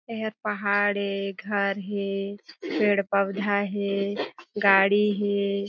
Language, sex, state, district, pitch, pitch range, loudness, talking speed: Chhattisgarhi, female, Chhattisgarh, Jashpur, 200 Hz, 200-205 Hz, -25 LUFS, 95 wpm